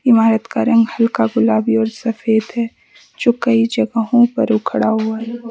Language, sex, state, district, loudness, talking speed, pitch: Hindi, female, Mizoram, Aizawl, -16 LUFS, 155 wpm, 225 Hz